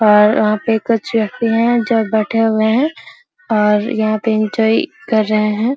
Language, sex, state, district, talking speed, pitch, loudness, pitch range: Hindi, female, Bihar, Araria, 145 wpm, 220 Hz, -15 LUFS, 215-230 Hz